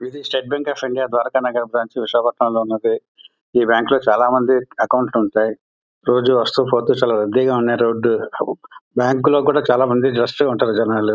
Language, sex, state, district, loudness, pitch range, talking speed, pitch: Telugu, male, Andhra Pradesh, Visakhapatnam, -17 LUFS, 115-130 Hz, 185 wpm, 125 Hz